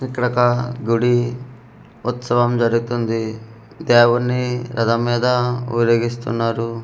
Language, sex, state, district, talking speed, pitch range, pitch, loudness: Telugu, male, Andhra Pradesh, Manyam, 70 wpm, 115-125 Hz, 120 Hz, -18 LUFS